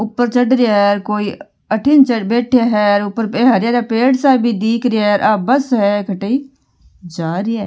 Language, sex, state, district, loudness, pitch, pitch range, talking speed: Marwari, female, Rajasthan, Nagaur, -14 LUFS, 225 Hz, 205-245 Hz, 195 wpm